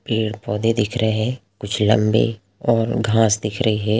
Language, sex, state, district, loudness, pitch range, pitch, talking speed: Hindi, male, Bihar, Sitamarhi, -20 LUFS, 105-115 Hz, 110 Hz, 180 wpm